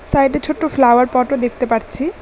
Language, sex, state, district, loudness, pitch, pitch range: Bengali, female, West Bengal, Alipurduar, -16 LUFS, 260 Hz, 245-290 Hz